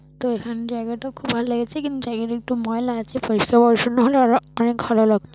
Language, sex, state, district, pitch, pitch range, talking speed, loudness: Bengali, female, West Bengal, Paschim Medinipur, 235 Hz, 230-245 Hz, 200 wpm, -20 LUFS